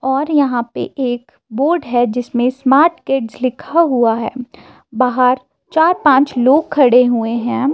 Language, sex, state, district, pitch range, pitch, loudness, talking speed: Hindi, female, Himachal Pradesh, Shimla, 245-280 Hz, 255 Hz, -15 LUFS, 145 wpm